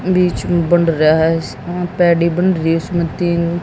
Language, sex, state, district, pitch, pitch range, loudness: Hindi, female, Haryana, Jhajjar, 170 Hz, 165-175 Hz, -15 LUFS